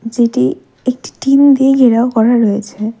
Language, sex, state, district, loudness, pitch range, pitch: Bengali, female, West Bengal, Darjeeling, -12 LUFS, 220-260 Hz, 235 Hz